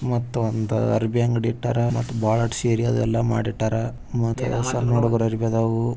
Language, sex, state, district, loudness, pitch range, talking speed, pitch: Kannada, male, Karnataka, Bijapur, -22 LUFS, 115-120 Hz, 130 wpm, 115 Hz